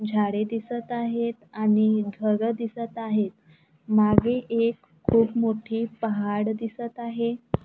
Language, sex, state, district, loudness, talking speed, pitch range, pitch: Marathi, female, Maharashtra, Gondia, -25 LUFS, 110 wpm, 210-235 Hz, 220 Hz